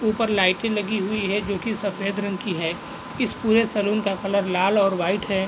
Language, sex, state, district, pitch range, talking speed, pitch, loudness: Hindi, male, Chhattisgarh, Raigarh, 195-210 Hz, 220 wpm, 200 Hz, -23 LUFS